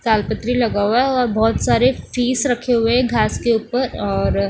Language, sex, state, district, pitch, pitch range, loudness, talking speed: Hindi, female, Bihar, West Champaran, 240 Hz, 220-250 Hz, -18 LUFS, 200 wpm